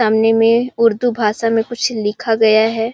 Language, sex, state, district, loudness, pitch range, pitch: Hindi, female, Chhattisgarh, Sarguja, -15 LUFS, 220-230 Hz, 225 Hz